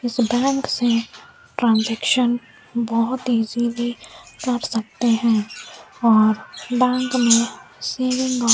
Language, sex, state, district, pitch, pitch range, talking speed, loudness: Hindi, female, Rajasthan, Bikaner, 240 Hz, 230-250 Hz, 105 wpm, -20 LUFS